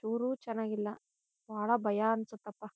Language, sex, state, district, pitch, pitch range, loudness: Kannada, female, Karnataka, Shimoga, 220 Hz, 210-225 Hz, -34 LUFS